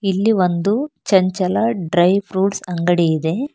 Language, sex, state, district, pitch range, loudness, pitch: Kannada, female, Karnataka, Bangalore, 175-210 Hz, -17 LUFS, 190 Hz